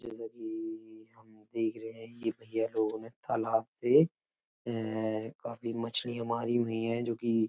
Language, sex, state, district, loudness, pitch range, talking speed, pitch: Hindi, male, Uttar Pradesh, Etah, -33 LUFS, 110-115 Hz, 135 wpm, 115 Hz